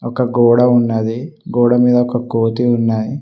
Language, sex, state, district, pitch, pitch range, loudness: Telugu, male, Telangana, Mahabubabad, 120 Hz, 115-125 Hz, -14 LUFS